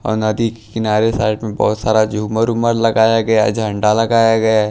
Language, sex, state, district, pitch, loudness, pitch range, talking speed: Hindi, male, Punjab, Pathankot, 110 Hz, -15 LUFS, 110-115 Hz, 190 wpm